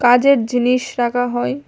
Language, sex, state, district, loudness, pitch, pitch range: Bengali, female, Tripura, West Tripura, -16 LUFS, 245 Hz, 240-250 Hz